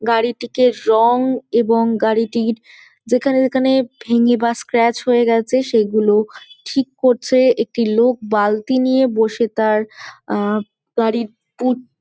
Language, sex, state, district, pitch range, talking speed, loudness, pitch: Bengali, female, West Bengal, Malda, 225-255 Hz, 110 wpm, -17 LUFS, 235 Hz